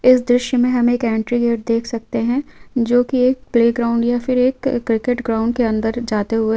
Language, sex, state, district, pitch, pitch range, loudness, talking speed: Hindi, female, Jharkhand, Sahebganj, 240 Hz, 230-245 Hz, -18 LUFS, 230 wpm